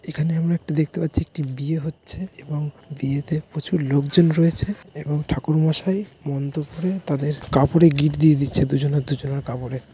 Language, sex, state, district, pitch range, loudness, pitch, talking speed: Bengali, male, West Bengal, Malda, 140-160 Hz, -22 LUFS, 150 Hz, 155 wpm